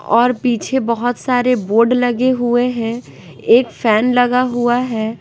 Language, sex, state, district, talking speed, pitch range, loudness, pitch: Hindi, female, Bihar, Patna, 150 wpm, 230-250 Hz, -15 LUFS, 245 Hz